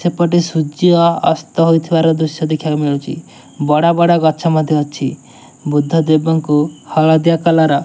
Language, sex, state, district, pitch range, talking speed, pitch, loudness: Odia, male, Odisha, Nuapada, 150-170 Hz, 130 wpm, 160 Hz, -14 LUFS